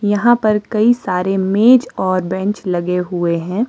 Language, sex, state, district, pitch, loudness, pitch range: Hindi, female, Himachal Pradesh, Shimla, 195 Hz, -15 LUFS, 180-215 Hz